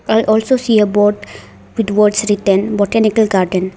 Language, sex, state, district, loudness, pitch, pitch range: English, female, Arunachal Pradesh, Lower Dibang Valley, -13 LUFS, 205 Hz, 190-220 Hz